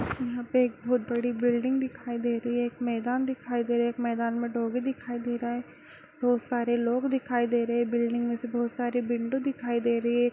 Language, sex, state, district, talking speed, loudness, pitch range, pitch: Hindi, female, Bihar, Kishanganj, 240 wpm, -28 LUFS, 235-245 Hz, 240 Hz